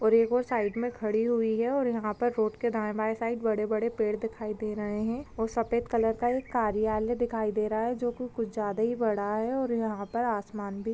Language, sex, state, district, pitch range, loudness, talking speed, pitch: Hindi, female, Chhattisgarh, Raigarh, 215-235 Hz, -29 LUFS, 235 wpm, 225 Hz